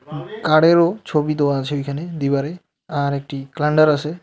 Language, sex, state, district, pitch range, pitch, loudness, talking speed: Bengali, male, West Bengal, Alipurduar, 140-155 Hz, 150 Hz, -19 LUFS, 140 wpm